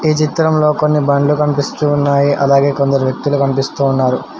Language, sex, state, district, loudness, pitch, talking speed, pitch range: Telugu, male, Telangana, Hyderabad, -14 LUFS, 140 Hz, 150 wpm, 140-150 Hz